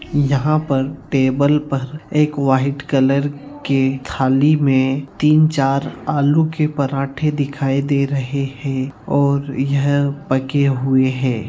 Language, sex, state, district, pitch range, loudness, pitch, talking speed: Hindi, male, Bihar, Jamui, 135-145 Hz, -17 LUFS, 140 Hz, 120 wpm